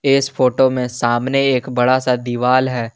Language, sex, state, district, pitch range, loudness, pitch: Hindi, male, Jharkhand, Garhwa, 125-130 Hz, -16 LUFS, 130 Hz